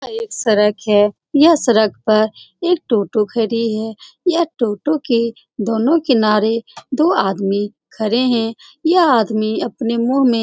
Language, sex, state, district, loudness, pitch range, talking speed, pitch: Hindi, female, Bihar, Saran, -16 LUFS, 215-290 Hz, 150 wpm, 230 Hz